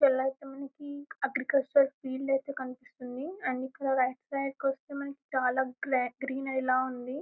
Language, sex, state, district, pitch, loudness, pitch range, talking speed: Telugu, female, Telangana, Karimnagar, 270 Hz, -31 LUFS, 260-280 Hz, 140 wpm